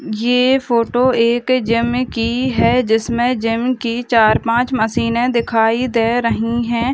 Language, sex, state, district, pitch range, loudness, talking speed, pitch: Hindi, female, Bihar, Madhepura, 230-250 Hz, -16 LUFS, 140 wpm, 235 Hz